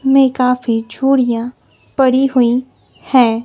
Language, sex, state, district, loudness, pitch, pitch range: Hindi, female, Bihar, West Champaran, -14 LUFS, 255 Hz, 240-265 Hz